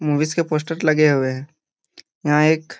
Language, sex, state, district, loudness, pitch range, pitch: Hindi, male, Jharkhand, Jamtara, -19 LUFS, 150-155 Hz, 155 Hz